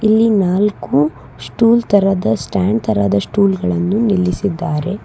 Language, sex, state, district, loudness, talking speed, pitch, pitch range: Kannada, female, Karnataka, Bangalore, -15 LUFS, 105 wpm, 185 Hz, 140-205 Hz